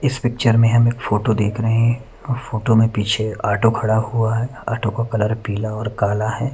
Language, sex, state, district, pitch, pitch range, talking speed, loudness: Hindi, male, Bihar, Katihar, 115 Hz, 110-120 Hz, 210 wpm, -19 LUFS